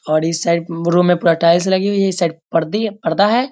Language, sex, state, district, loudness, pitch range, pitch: Hindi, male, Bihar, Sitamarhi, -16 LUFS, 165-195 Hz, 170 Hz